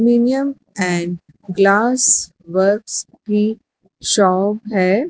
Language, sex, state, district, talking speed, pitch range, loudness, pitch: Hindi, male, Madhya Pradesh, Dhar, 80 wpm, 185-235 Hz, -16 LUFS, 205 Hz